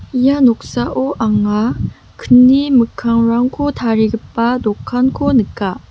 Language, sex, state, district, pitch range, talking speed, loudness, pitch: Garo, female, Meghalaya, West Garo Hills, 225-260 Hz, 80 wpm, -14 LUFS, 240 Hz